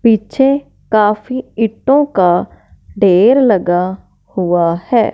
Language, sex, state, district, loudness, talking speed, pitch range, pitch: Hindi, male, Punjab, Fazilka, -13 LUFS, 95 wpm, 180-255 Hz, 215 Hz